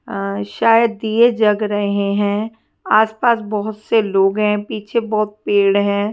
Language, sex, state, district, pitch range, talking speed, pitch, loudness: Hindi, female, Punjab, Fazilka, 200-220 Hz, 155 wpm, 210 Hz, -17 LUFS